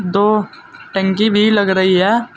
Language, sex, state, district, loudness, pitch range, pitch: Hindi, male, Uttar Pradesh, Saharanpur, -14 LUFS, 195-230 Hz, 210 Hz